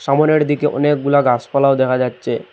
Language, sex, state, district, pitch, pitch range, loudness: Bengali, male, Assam, Hailakandi, 140 Hz, 130-145 Hz, -16 LUFS